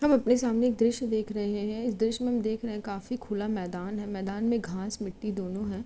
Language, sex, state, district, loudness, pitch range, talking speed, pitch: Hindi, female, Uttar Pradesh, Jyotiba Phule Nagar, -30 LUFS, 205-235 Hz, 255 wpm, 215 Hz